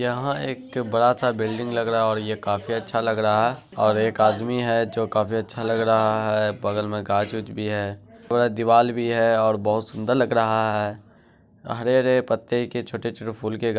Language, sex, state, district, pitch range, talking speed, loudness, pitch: Hindi, male, Bihar, Araria, 110-120 Hz, 205 wpm, -23 LUFS, 115 Hz